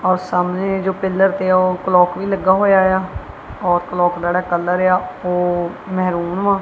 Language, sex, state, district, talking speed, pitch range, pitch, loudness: Punjabi, male, Punjab, Kapurthala, 180 wpm, 180-190 Hz, 185 Hz, -17 LUFS